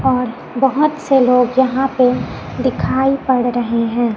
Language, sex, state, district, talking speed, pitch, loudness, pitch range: Hindi, male, Chhattisgarh, Raipur, 145 wpm, 255 Hz, -16 LUFS, 245-270 Hz